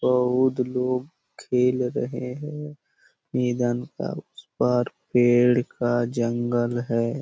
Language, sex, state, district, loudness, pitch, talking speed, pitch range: Hindi, male, Chhattisgarh, Bastar, -24 LUFS, 125 Hz, 110 wpm, 120-125 Hz